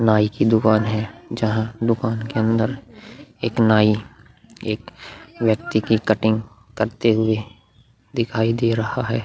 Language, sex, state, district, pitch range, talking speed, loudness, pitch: Hindi, male, Bihar, Vaishali, 110-115 Hz, 130 wpm, -20 LUFS, 110 Hz